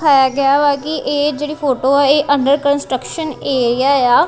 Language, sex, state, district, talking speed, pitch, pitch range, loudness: Punjabi, female, Punjab, Kapurthala, 170 wpm, 280 Hz, 270-290 Hz, -15 LUFS